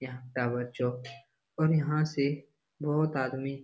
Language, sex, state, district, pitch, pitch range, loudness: Hindi, male, Bihar, Jamui, 140 Hz, 125-150 Hz, -31 LUFS